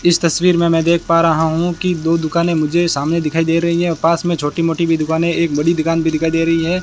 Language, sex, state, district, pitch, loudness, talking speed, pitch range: Hindi, male, Rajasthan, Bikaner, 165 Hz, -15 LUFS, 270 wpm, 160-170 Hz